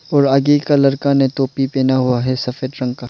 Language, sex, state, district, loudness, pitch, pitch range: Hindi, male, Arunachal Pradesh, Lower Dibang Valley, -16 LUFS, 135 Hz, 130-140 Hz